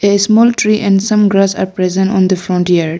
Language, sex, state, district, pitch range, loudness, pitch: English, female, Arunachal Pradesh, Lower Dibang Valley, 185-210 Hz, -12 LUFS, 195 Hz